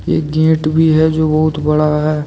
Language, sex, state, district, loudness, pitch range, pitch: Hindi, male, Jharkhand, Deoghar, -13 LUFS, 150-160 Hz, 155 Hz